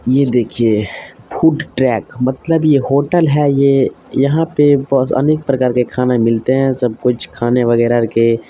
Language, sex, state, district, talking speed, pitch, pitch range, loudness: Hindi, male, Bihar, Jamui, 155 wpm, 130 Hz, 120-140 Hz, -14 LUFS